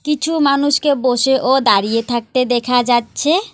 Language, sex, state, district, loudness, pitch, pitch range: Bengali, female, West Bengal, Alipurduar, -15 LUFS, 265 Hz, 245-290 Hz